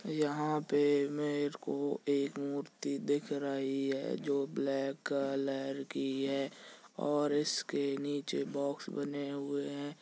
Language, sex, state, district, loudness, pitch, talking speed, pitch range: Hindi, male, Jharkhand, Sahebganj, -35 LUFS, 140 Hz, 125 wpm, 135-145 Hz